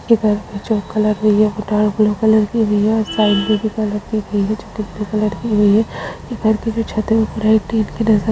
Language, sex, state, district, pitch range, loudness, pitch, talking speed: Hindi, female, Uttarakhand, Uttarkashi, 210-220 Hz, -17 LUFS, 215 Hz, 215 wpm